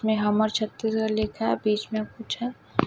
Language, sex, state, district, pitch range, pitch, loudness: Hindi, male, Chhattisgarh, Raipur, 210-220 Hz, 215 Hz, -26 LUFS